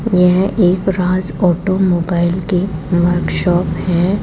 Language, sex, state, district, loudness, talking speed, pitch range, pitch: Hindi, female, Rajasthan, Jaipur, -15 LUFS, 115 wpm, 175-185 Hz, 180 Hz